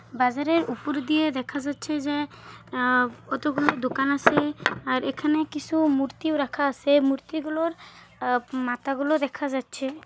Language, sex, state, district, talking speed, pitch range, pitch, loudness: Bengali, female, West Bengal, Kolkata, 120 wpm, 265-300 Hz, 285 Hz, -25 LUFS